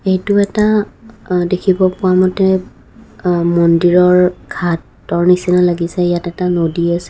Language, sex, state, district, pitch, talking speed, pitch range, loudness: Assamese, female, Assam, Kamrup Metropolitan, 180 Hz, 125 wpm, 175-185 Hz, -14 LUFS